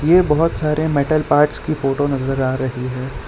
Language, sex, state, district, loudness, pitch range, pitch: Hindi, male, Gujarat, Valsad, -18 LUFS, 130-155 Hz, 145 Hz